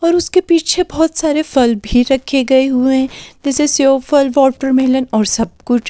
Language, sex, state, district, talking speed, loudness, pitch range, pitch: Hindi, female, Delhi, New Delhi, 195 wpm, -14 LUFS, 255-300 Hz, 270 Hz